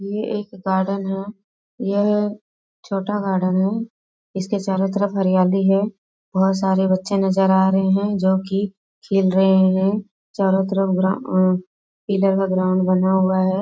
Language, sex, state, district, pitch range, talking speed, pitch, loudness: Hindi, female, Bihar, Muzaffarpur, 190-200 Hz, 155 wpm, 195 Hz, -19 LUFS